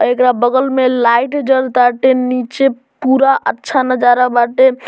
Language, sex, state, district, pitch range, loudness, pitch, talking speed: Bhojpuri, male, Bihar, Muzaffarpur, 245-265 Hz, -13 LUFS, 255 Hz, 150 wpm